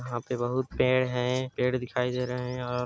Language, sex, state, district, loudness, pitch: Hindi, male, Chhattisgarh, Sarguja, -29 LUFS, 125 Hz